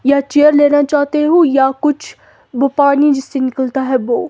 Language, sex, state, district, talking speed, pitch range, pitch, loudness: Hindi, female, Himachal Pradesh, Shimla, 180 wpm, 265-295 Hz, 280 Hz, -13 LUFS